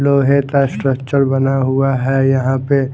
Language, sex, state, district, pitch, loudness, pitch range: Hindi, male, Haryana, Jhajjar, 135 Hz, -15 LUFS, 135-140 Hz